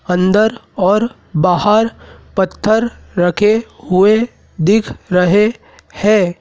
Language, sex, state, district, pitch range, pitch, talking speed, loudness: Hindi, male, Madhya Pradesh, Dhar, 180-220 Hz, 205 Hz, 85 wpm, -14 LUFS